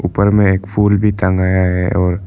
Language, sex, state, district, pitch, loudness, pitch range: Hindi, male, Arunachal Pradesh, Lower Dibang Valley, 95 Hz, -14 LUFS, 95-100 Hz